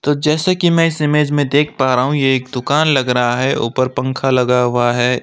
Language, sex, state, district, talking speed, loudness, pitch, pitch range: Hindi, male, West Bengal, Alipurduar, 250 wpm, -15 LUFS, 130 Hz, 125-150 Hz